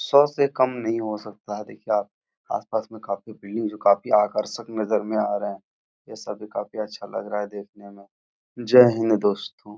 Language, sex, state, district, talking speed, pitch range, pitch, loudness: Hindi, male, Bihar, Jahanabad, 210 wpm, 105-115 Hz, 105 Hz, -24 LUFS